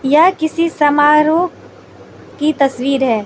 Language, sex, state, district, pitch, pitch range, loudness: Hindi, female, Manipur, Imphal West, 300 Hz, 275-320 Hz, -14 LUFS